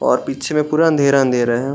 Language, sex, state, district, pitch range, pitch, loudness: Hindi, male, Bihar, Gaya, 130-150 Hz, 140 Hz, -16 LUFS